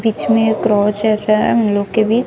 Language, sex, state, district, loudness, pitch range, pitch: Hindi, female, Chhattisgarh, Raipur, -14 LUFS, 210-225 Hz, 215 Hz